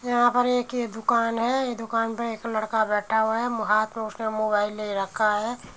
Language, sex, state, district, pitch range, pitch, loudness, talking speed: Hindi, female, Uttar Pradesh, Muzaffarnagar, 215-235 Hz, 225 Hz, -25 LUFS, 210 wpm